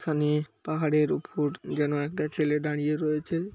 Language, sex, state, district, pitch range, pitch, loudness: Bengali, male, West Bengal, Jhargram, 150-155 Hz, 150 Hz, -28 LUFS